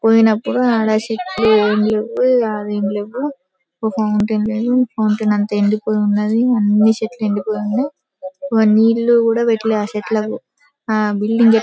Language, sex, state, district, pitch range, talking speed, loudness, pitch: Telugu, female, Telangana, Karimnagar, 210-235 Hz, 140 wpm, -16 LUFS, 220 Hz